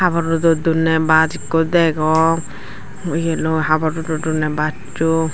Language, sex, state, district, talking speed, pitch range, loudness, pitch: Chakma, female, Tripura, Dhalai, 110 wpm, 155-165 Hz, -17 LUFS, 160 Hz